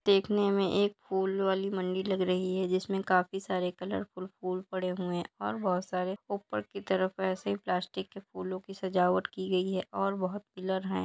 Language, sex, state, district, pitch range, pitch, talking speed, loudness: Hindi, male, Bihar, Jahanabad, 185-195 Hz, 190 Hz, 195 wpm, -32 LUFS